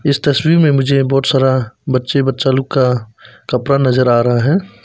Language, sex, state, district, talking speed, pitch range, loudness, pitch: Hindi, male, Arunachal Pradesh, Papum Pare, 185 wpm, 125-140 Hz, -14 LUFS, 135 Hz